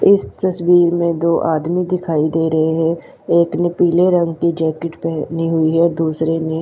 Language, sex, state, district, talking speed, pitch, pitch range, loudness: Hindi, female, Haryana, Charkhi Dadri, 180 wpm, 165 Hz, 160-170 Hz, -16 LUFS